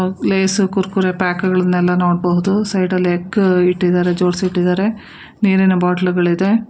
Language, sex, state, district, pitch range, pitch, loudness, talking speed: Kannada, female, Karnataka, Bangalore, 180-190 Hz, 185 Hz, -16 LUFS, 100 wpm